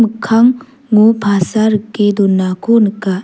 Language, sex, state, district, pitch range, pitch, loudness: Garo, female, Meghalaya, South Garo Hills, 200-230 Hz, 215 Hz, -12 LUFS